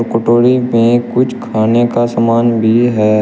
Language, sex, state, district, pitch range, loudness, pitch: Hindi, male, Uttar Pradesh, Shamli, 115-120 Hz, -12 LUFS, 115 Hz